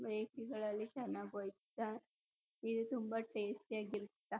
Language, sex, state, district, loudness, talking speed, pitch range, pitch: Kannada, female, Karnataka, Chamarajanagar, -44 LUFS, 95 wpm, 210-225 Hz, 220 Hz